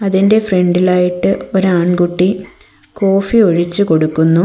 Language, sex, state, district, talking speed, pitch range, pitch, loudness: Malayalam, female, Kerala, Kollam, 95 wpm, 175-195 Hz, 185 Hz, -13 LUFS